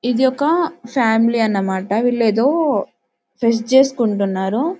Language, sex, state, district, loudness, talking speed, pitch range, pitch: Telugu, female, Telangana, Karimnagar, -17 LUFS, 100 wpm, 220-270 Hz, 235 Hz